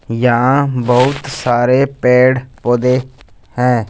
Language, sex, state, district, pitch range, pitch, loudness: Hindi, male, Punjab, Fazilka, 120-130 Hz, 125 Hz, -13 LUFS